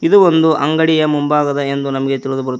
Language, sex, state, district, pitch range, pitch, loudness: Kannada, male, Karnataka, Koppal, 135-160 Hz, 145 Hz, -14 LUFS